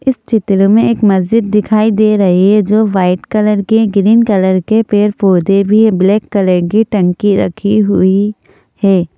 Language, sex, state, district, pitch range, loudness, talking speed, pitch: Hindi, female, Madhya Pradesh, Bhopal, 190-215 Hz, -11 LUFS, 170 wpm, 205 Hz